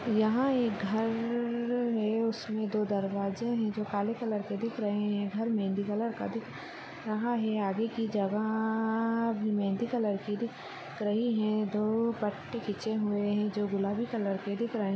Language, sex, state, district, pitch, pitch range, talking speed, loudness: Hindi, female, Chhattisgarh, Sarguja, 215 Hz, 205-230 Hz, 175 wpm, -31 LUFS